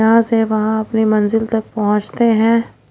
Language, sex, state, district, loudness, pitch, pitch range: Hindi, female, Odisha, Khordha, -15 LUFS, 220 Hz, 215-225 Hz